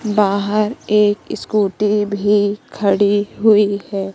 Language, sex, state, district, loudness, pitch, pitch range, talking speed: Hindi, female, Madhya Pradesh, Katni, -16 LUFS, 205 Hz, 200-210 Hz, 100 wpm